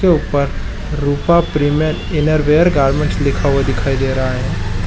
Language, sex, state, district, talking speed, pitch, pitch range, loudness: Hindi, male, Bihar, Madhepura, 175 wpm, 145 Hz, 135-155 Hz, -16 LUFS